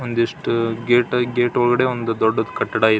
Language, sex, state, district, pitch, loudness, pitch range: Kannada, male, Karnataka, Belgaum, 120 Hz, -19 LUFS, 115-120 Hz